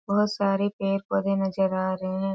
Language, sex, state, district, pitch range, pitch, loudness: Hindi, female, Bihar, Sitamarhi, 190-200 Hz, 195 Hz, -26 LUFS